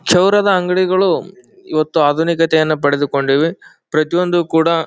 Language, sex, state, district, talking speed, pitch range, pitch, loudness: Kannada, male, Karnataka, Bijapur, 100 wpm, 155-180 Hz, 165 Hz, -15 LUFS